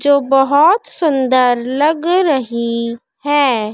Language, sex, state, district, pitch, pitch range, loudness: Hindi, female, Madhya Pradesh, Dhar, 275 Hz, 245-295 Hz, -14 LUFS